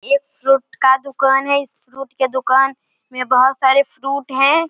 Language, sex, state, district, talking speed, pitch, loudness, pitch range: Hindi, female, Bihar, Samastipur, 180 wpm, 270 Hz, -16 LUFS, 260-275 Hz